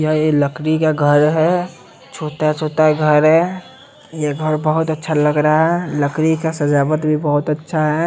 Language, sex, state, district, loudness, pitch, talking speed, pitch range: Hindi, male, Bihar, West Champaran, -16 LUFS, 155 Hz, 170 wpm, 150-160 Hz